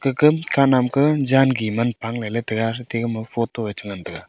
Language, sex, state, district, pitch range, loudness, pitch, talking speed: Wancho, male, Arunachal Pradesh, Longding, 115-135 Hz, -20 LUFS, 115 Hz, 240 wpm